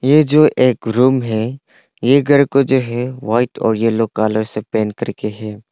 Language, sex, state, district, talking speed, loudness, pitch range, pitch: Hindi, male, Arunachal Pradesh, Longding, 190 wpm, -16 LUFS, 110-130 Hz, 120 Hz